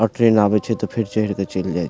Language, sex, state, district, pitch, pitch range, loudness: Maithili, male, Bihar, Supaul, 105 Hz, 95-115 Hz, -19 LUFS